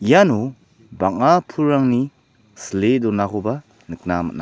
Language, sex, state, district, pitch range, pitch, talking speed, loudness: Garo, male, Meghalaya, South Garo Hills, 100-130 Hz, 110 Hz, 95 wpm, -19 LUFS